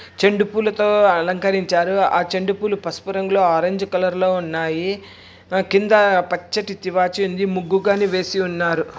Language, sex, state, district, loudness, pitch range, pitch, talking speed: Telugu, male, Andhra Pradesh, Anantapur, -19 LUFS, 180-200 Hz, 190 Hz, 135 wpm